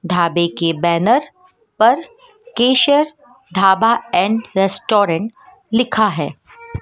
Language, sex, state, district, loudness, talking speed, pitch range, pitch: Hindi, female, Madhya Pradesh, Dhar, -16 LUFS, 90 wpm, 180-290 Hz, 225 Hz